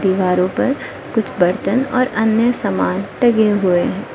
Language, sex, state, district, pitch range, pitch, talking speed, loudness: Hindi, female, Arunachal Pradesh, Lower Dibang Valley, 190-245 Hz, 220 Hz, 130 wpm, -17 LUFS